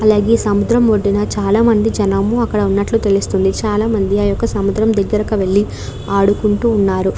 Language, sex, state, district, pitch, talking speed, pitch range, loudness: Telugu, female, Andhra Pradesh, Krishna, 205 Hz, 150 wpm, 200-220 Hz, -15 LUFS